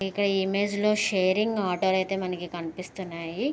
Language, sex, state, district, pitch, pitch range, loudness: Telugu, female, Andhra Pradesh, Krishna, 190 Hz, 180-205 Hz, -27 LUFS